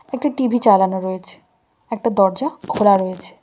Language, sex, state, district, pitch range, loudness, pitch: Bengali, female, West Bengal, Cooch Behar, 190-255 Hz, -18 LUFS, 210 Hz